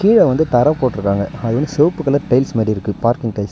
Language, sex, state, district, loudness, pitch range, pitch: Tamil, male, Tamil Nadu, Nilgiris, -16 LUFS, 110-145 Hz, 125 Hz